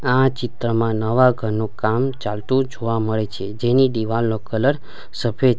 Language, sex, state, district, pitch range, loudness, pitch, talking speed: Gujarati, male, Gujarat, Valsad, 110-130 Hz, -20 LUFS, 115 Hz, 160 wpm